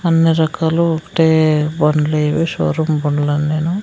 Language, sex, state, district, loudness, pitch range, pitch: Telugu, female, Andhra Pradesh, Sri Satya Sai, -15 LUFS, 150-165 Hz, 160 Hz